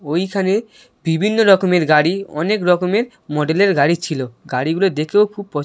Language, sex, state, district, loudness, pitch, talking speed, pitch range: Bengali, male, West Bengal, Kolkata, -17 LUFS, 180 Hz, 150 wpm, 155-200 Hz